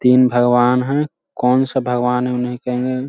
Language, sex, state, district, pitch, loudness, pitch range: Hindi, male, Bihar, Sitamarhi, 125 Hz, -17 LUFS, 125-130 Hz